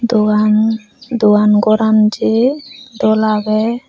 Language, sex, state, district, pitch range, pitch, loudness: Chakma, female, Tripura, Unakoti, 215-235 Hz, 220 Hz, -13 LUFS